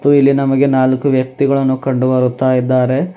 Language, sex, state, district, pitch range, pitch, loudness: Kannada, male, Karnataka, Bidar, 130-140 Hz, 130 Hz, -14 LUFS